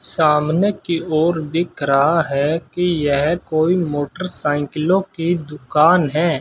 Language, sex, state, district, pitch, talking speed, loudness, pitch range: Hindi, male, Rajasthan, Bikaner, 160 Hz, 120 wpm, -18 LUFS, 150-175 Hz